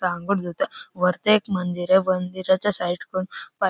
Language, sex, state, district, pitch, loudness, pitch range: Marathi, male, Maharashtra, Chandrapur, 185 Hz, -23 LUFS, 180-200 Hz